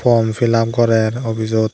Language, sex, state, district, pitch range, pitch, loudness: Chakma, male, Tripura, Dhalai, 110-120 Hz, 115 Hz, -16 LUFS